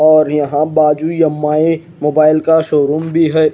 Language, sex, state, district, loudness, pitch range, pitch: Hindi, male, Odisha, Khordha, -13 LUFS, 150-160 Hz, 155 Hz